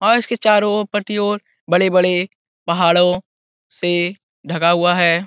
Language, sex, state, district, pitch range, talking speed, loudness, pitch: Hindi, male, Uttar Pradesh, Etah, 175-205 Hz, 125 wpm, -16 LUFS, 180 Hz